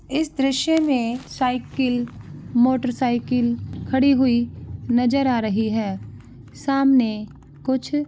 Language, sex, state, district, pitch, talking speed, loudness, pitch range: Hindi, female, Maharashtra, Nagpur, 250 Hz, 105 wpm, -21 LUFS, 235-270 Hz